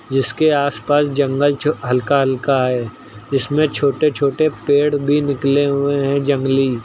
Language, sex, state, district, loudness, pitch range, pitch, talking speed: Hindi, male, Uttar Pradesh, Lucknow, -17 LUFS, 135-145 Hz, 140 Hz, 150 wpm